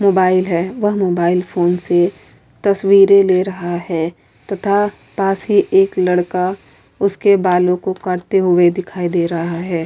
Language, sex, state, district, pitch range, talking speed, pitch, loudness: Hindi, female, Uttar Pradesh, Hamirpur, 175-195 Hz, 145 wpm, 185 Hz, -15 LUFS